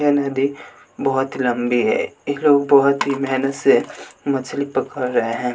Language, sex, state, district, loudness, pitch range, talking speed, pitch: Hindi, male, Bihar, West Champaran, -19 LUFS, 130-140 Hz, 160 wpm, 135 Hz